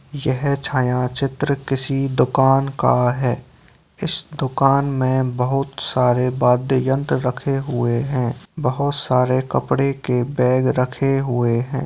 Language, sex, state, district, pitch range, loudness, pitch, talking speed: Hindi, female, Bihar, Saharsa, 125-140 Hz, -19 LUFS, 130 Hz, 120 wpm